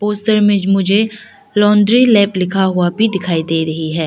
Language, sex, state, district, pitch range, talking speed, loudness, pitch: Hindi, female, Arunachal Pradesh, Lower Dibang Valley, 180-210 Hz, 175 wpm, -13 LUFS, 200 Hz